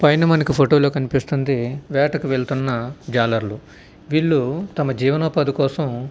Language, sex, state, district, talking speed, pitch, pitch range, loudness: Telugu, male, Andhra Pradesh, Visakhapatnam, 135 wpm, 140 Hz, 130-150 Hz, -19 LUFS